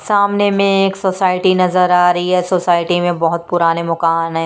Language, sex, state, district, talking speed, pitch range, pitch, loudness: Hindi, female, Punjab, Kapurthala, 190 wpm, 170-190 Hz, 180 Hz, -14 LUFS